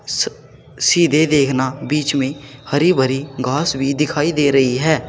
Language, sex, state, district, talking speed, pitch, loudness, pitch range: Hindi, male, Uttar Pradesh, Saharanpur, 155 wpm, 140 Hz, -17 LUFS, 135-150 Hz